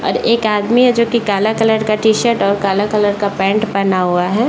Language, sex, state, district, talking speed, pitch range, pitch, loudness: Hindi, male, Bihar, Jahanabad, 240 wpm, 200-225 Hz, 210 Hz, -14 LUFS